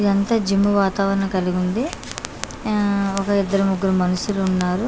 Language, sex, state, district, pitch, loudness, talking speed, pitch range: Telugu, female, Andhra Pradesh, Manyam, 195 Hz, -20 LUFS, 110 wpm, 190-205 Hz